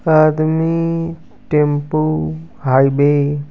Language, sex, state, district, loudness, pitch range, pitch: Hindi, male, Bihar, Kaimur, -16 LUFS, 140-160 Hz, 150 Hz